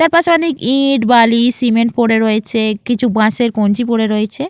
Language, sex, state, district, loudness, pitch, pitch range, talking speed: Bengali, female, West Bengal, Jalpaiguri, -13 LUFS, 235 Hz, 220-255 Hz, 160 wpm